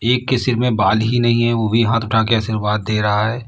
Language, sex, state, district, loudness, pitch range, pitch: Hindi, male, Uttar Pradesh, Lalitpur, -17 LUFS, 110-120 Hz, 115 Hz